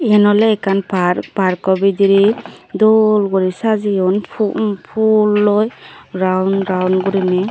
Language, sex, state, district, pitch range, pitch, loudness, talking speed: Chakma, female, Tripura, Dhalai, 190-215 Hz, 195 Hz, -15 LUFS, 120 wpm